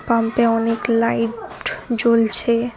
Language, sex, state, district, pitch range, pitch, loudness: Bengali, female, West Bengal, Cooch Behar, 230-235 Hz, 230 Hz, -17 LUFS